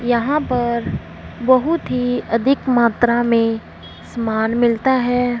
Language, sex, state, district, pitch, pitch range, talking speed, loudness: Hindi, female, Punjab, Fazilka, 240 Hz, 235-255 Hz, 110 wpm, -18 LUFS